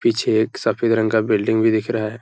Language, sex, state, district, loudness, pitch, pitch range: Hindi, male, Uttar Pradesh, Hamirpur, -19 LUFS, 110 Hz, 110-115 Hz